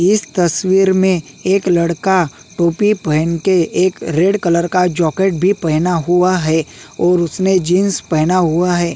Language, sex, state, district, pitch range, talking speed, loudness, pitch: Hindi, male, Uttarakhand, Tehri Garhwal, 170-190 Hz, 155 wpm, -15 LUFS, 180 Hz